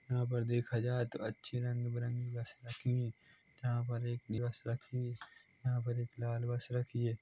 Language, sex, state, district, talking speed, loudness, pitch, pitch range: Hindi, male, Chhattisgarh, Korba, 190 wpm, -39 LUFS, 120 Hz, 120-125 Hz